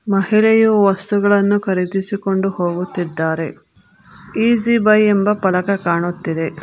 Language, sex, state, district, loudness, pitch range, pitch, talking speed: Kannada, female, Karnataka, Bangalore, -16 LUFS, 180-210 Hz, 195 Hz, 80 wpm